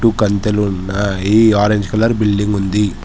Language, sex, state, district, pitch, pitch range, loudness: Telugu, male, Telangana, Hyderabad, 105 Hz, 100-105 Hz, -15 LUFS